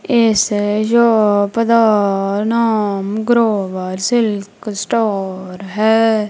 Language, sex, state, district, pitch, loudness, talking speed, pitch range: Punjabi, female, Punjab, Kapurthala, 210 Hz, -15 LUFS, 75 wpm, 200-225 Hz